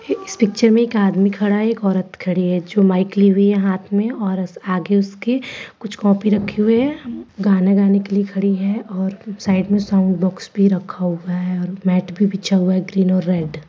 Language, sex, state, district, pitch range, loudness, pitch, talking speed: Hindi, female, Bihar, Gopalganj, 185-205 Hz, -18 LUFS, 195 Hz, 225 wpm